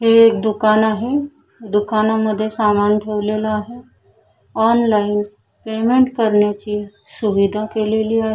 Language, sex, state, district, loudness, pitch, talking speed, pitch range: Marathi, female, Maharashtra, Chandrapur, -17 LUFS, 215 Hz, 100 wpm, 210-225 Hz